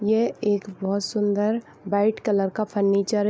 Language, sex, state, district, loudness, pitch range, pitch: Hindi, female, Bihar, Vaishali, -24 LUFS, 200-215 Hz, 205 Hz